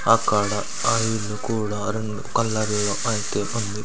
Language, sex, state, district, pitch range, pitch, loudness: Telugu, male, Andhra Pradesh, Sri Satya Sai, 105-115 Hz, 105 Hz, -23 LUFS